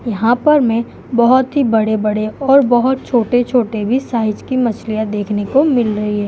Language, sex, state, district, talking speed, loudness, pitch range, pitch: Hindi, female, Uttar Pradesh, Budaun, 170 wpm, -15 LUFS, 215-255 Hz, 235 Hz